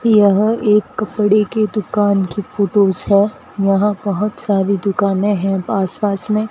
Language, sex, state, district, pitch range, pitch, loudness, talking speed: Hindi, female, Rajasthan, Bikaner, 195-210 Hz, 205 Hz, -16 LUFS, 150 wpm